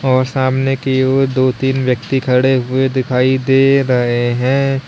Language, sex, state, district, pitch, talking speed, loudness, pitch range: Hindi, male, Uttar Pradesh, Lalitpur, 130 Hz, 160 wpm, -14 LUFS, 130-135 Hz